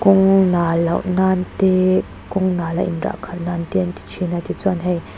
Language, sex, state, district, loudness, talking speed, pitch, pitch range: Mizo, female, Mizoram, Aizawl, -19 LUFS, 195 wpm, 180 Hz, 170-190 Hz